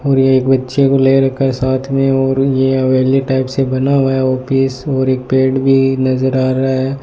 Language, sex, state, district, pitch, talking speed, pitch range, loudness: Hindi, male, Rajasthan, Bikaner, 135 Hz, 230 wpm, 130-135 Hz, -13 LUFS